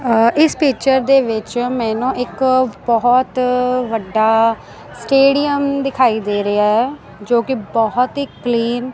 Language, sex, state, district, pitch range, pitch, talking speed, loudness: Punjabi, female, Punjab, Kapurthala, 225-260 Hz, 250 Hz, 120 wpm, -16 LUFS